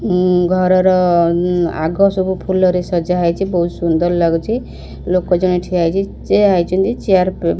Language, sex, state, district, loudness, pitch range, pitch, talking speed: Odia, female, Odisha, Khordha, -15 LUFS, 175-185 Hz, 180 Hz, 160 wpm